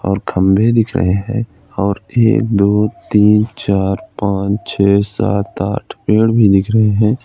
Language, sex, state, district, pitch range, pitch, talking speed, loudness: Hindi, male, Uttar Pradesh, Ghazipur, 100-110 Hz, 105 Hz, 155 wpm, -14 LUFS